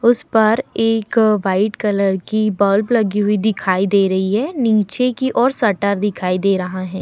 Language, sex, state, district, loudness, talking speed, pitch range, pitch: Hindi, female, Uttar Pradesh, Muzaffarnagar, -17 LUFS, 180 wpm, 195-225 Hz, 210 Hz